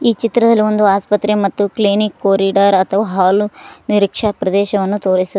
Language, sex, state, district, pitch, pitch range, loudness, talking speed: Kannada, female, Karnataka, Koppal, 205 Hz, 195-210 Hz, -14 LUFS, 135 wpm